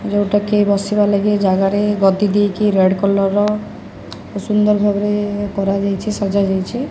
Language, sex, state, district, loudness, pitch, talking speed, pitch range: Odia, female, Odisha, Sambalpur, -16 LUFS, 205 Hz, 155 wpm, 200-210 Hz